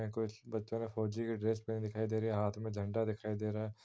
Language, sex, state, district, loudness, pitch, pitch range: Hindi, male, Uttar Pradesh, Ghazipur, -38 LUFS, 110 Hz, 105-110 Hz